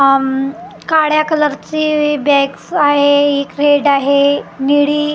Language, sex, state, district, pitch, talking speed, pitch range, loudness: Marathi, female, Maharashtra, Gondia, 290 Hz, 115 wpm, 280-300 Hz, -13 LUFS